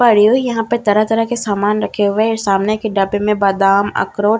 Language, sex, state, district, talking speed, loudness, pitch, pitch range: Hindi, female, Bihar, Katihar, 245 wpm, -15 LUFS, 210 Hz, 200-225 Hz